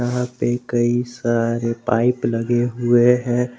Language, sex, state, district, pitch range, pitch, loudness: Hindi, male, Jharkhand, Garhwa, 120-125 Hz, 120 Hz, -19 LUFS